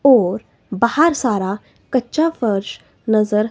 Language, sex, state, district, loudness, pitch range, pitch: Hindi, female, Himachal Pradesh, Shimla, -18 LUFS, 210-270 Hz, 230 Hz